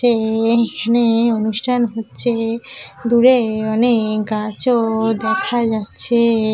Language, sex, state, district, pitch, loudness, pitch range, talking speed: Bengali, female, West Bengal, Jhargram, 225 Hz, -17 LUFS, 220-235 Hz, 90 wpm